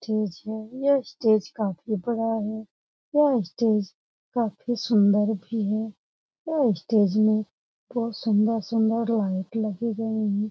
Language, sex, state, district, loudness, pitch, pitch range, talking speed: Hindi, female, Bihar, Lakhisarai, -25 LUFS, 220 Hz, 210-230 Hz, 135 wpm